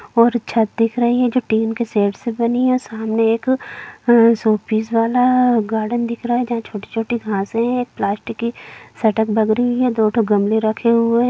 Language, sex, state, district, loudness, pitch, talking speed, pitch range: Hindi, female, Bihar, Gopalganj, -18 LUFS, 230 Hz, 200 wpm, 220-240 Hz